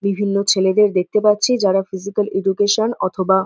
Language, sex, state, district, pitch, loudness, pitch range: Bengali, female, West Bengal, North 24 Parganas, 200 Hz, -17 LUFS, 190-210 Hz